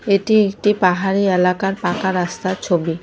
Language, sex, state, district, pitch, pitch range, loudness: Bengali, female, West Bengal, Cooch Behar, 190 Hz, 180-200 Hz, -17 LUFS